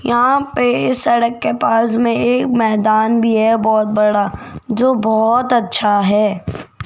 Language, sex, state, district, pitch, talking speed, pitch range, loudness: Hindi, female, Rajasthan, Jaipur, 230 Hz, 140 wpm, 215-245 Hz, -15 LUFS